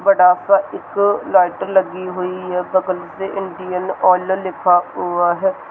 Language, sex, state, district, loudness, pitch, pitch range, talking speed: Hindi, male, Rajasthan, Churu, -17 LUFS, 185 Hz, 180-195 Hz, 145 wpm